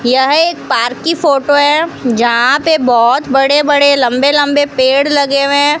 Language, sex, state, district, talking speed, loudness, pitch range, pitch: Hindi, female, Rajasthan, Bikaner, 175 wpm, -11 LUFS, 260-290 Hz, 285 Hz